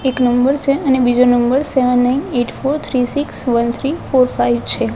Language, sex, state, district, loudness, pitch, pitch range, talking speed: Gujarati, female, Gujarat, Gandhinagar, -15 LUFS, 255 Hz, 245-275 Hz, 205 wpm